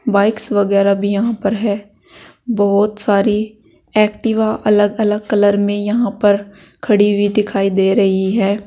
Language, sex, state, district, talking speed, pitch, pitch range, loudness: Hindi, female, Uttar Pradesh, Saharanpur, 145 wpm, 205 Hz, 200-215 Hz, -15 LUFS